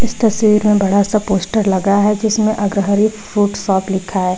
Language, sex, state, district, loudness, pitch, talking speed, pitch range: Hindi, female, Uttar Pradesh, Lucknow, -15 LUFS, 205 Hz, 180 wpm, 195-215 Hz